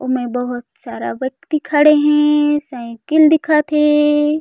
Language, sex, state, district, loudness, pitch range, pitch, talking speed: Chhattisgarhi, female, Chhattisgarh, Raigarh, -15 LUFS, 260-300 Hz, 295 Hz, 120 wpm